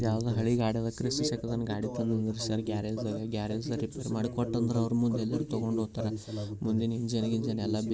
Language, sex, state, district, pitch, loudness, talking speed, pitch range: Kannada, male, Karnataka, Bijapur, 115 Hz, -31 LUFS, 85 wpm, 110-115 Hz